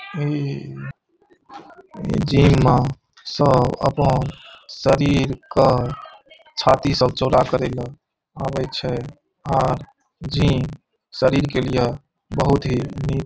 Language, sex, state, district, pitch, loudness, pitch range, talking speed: Maithili, male, Bihar, Saharsa, 135 Hz, -20 LUFS, 125-170 Hz, 100 wpm